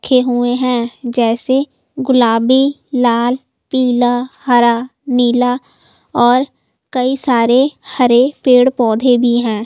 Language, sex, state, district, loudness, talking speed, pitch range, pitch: Hindi, female, Delhi, New Delhi, -14 LUFS, 100 wpm, 240-260 Hz, 250 Hz